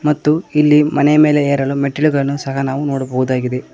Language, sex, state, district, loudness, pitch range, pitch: Kannada, male, Karnataka, Koppal, -15 LUFS, 135-150 Hz, 140 Hz